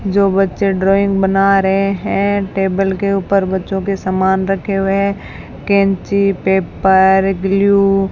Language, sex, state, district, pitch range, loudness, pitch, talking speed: Hindi, female, Rajasthan, Bikaner, 190-195 Hz, -14 LUFS, 195 Hz, 135 wpm